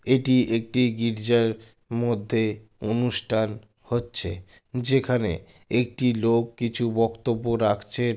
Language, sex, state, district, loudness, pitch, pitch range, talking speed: Bengali, male, West Bengal, Jalpaiguri, -24 LUFS, 115 Hz, 110-120 Hz, 95 wpm